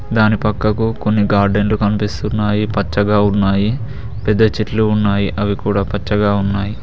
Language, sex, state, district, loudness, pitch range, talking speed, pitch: Telugu, male, Telangana, Mahabubabad, -16 LUFS, 100-110 Hz, 125 wpm, 105 Hz